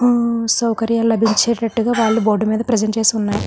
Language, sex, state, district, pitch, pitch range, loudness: Telugu, female, Andhra Pradesh, Visakhapatnam, 225 Hz, 220-235 Hz, -16 LUFS